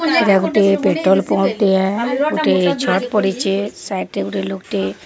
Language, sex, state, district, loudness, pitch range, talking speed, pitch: Odia, female, Odisha, Sambalpur, -17 LUFS, 190-220 Hz, 155 wpm, 195 Hz